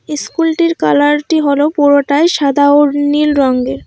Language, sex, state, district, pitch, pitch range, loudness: Bengali, female, West Bengal, Alipurduar, 290 Hz, 285-305 Hz, -11 LUFS